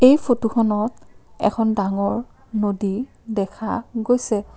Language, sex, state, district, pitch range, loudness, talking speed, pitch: Assamese, female, Assam, Kamrup Metropolitan, 205-235 Hz, -22 LUFS, 90 wpm, 220 Hz